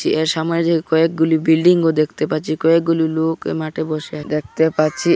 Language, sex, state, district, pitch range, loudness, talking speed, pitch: Bengali, male, Assam, Hailakandi, 155-165 Hz, -17 LUFS, 140 wpm, 160 Hz